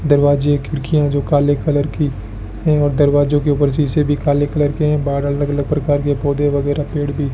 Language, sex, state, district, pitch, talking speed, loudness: Hindi, male, Rajasthan, Bikaner, 145 Hz, 210 wpm, -16 LUFS